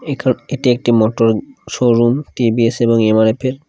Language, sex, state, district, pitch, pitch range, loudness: Bengali, male, Odisha, Khordha, 120 Hz, 115-135 Hz, -15 LUFS